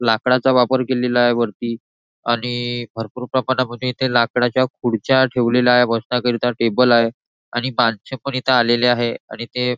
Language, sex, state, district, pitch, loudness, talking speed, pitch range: Marathi, male, Maharashtra, Nagpur, 125 Hz, -18 LUFS, 160 wpm, 120-125 Hz